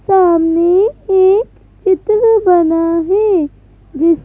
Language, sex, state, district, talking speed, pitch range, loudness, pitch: Hindi, female, Madhya Pradesh, Bhopal, 85 wpm, 335-400 Hz, -12 LUFS, 370 Hz